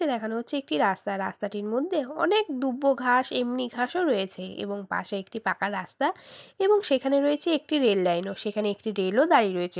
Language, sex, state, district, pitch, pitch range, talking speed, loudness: Bengali, female, West Bengal, Purulia, 235 Hz, 195-280 Hz, 185 wpm, -26 LUFS